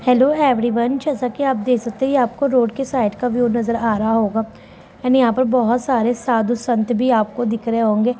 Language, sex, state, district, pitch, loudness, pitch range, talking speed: Hindi, female, Bihar, Sitamarhi, 240 Hz, -18 LUFS, 230-255 Hz, 240 wpm